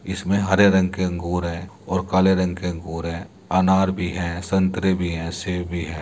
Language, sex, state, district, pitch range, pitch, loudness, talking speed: Hindi, male, Uttar Pradesh, Muzaffarnagar, 85-95 Hz, 90 Hz, -22 LUFS, 180 wpm